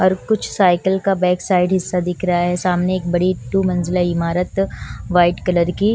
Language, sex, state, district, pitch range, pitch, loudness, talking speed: Hindi, female, Punjab, Kapurthala, 175-190 Hz, 180 Hz, -18 LUFS, 190 wpm